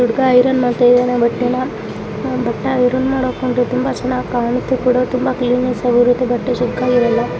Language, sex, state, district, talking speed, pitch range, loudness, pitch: Kannada, female, Karnataka, Raichur, 120 wpm, 245-255 Hz, -16 LUFS, 250 Hz